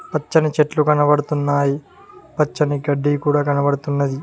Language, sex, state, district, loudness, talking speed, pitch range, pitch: Telugu, male, Telangana, Mahabubabad, -18 LUFS, 100 wpm, 145-150 Hz, 145 Hz